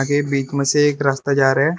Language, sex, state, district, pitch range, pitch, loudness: Hindi, male, Arunachal Pradesh, Lower Dibang Valley, 135-145 Hz, 140 Hz, -18 LUFS